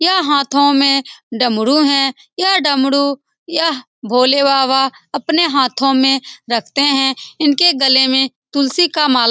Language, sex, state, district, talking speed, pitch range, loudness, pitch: Hindi, female, Bihar, Saran, 140 wpm, 265-300 Hz, -14 LUFS, 275 Hz